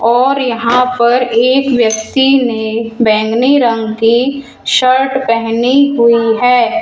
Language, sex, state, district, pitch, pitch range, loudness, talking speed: Hindi, female, Rajasthan, Jaipur, 240 Hz, 230-265 Hz, -11 LUFS, 115 wpm